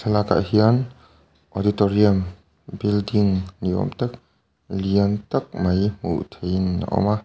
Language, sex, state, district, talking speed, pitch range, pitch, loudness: Mizo, male, Mizoram, Aizawl, 130 wpm, 90-105 Hz, 100 Hz, -22 LUFS